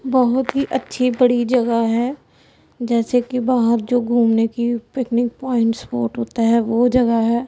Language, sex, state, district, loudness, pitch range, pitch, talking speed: Hindi, female, Punjab, Pathankot, -18 LUFS, 230-250 Hz, 240 Hz, 160 wpm